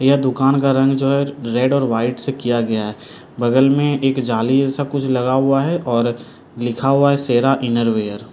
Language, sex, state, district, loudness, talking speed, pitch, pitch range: Hindi, male, Delhi, New Delhi, -17 LUFS, 210 wpm, 130 Hz, 120-135 Hz